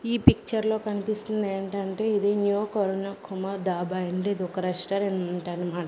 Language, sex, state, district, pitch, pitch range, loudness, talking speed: Telugu, female, Andhra Pradesh, Manyam, 195 Hz, 185-210 Hz, -27 LUFS, 135 wpm